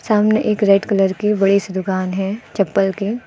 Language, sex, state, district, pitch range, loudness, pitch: Hindi, female, Uttar Pradesh, Lucknow, 195-210 Hz, -17 LUFS, 195 Hz